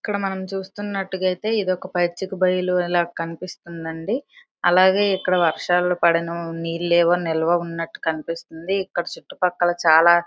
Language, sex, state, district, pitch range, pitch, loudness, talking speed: Telugu, female, Andhra Pradesh, Srikakulam, 170-190 Hz, 175 Hz, -21 LUFS, 135 wpm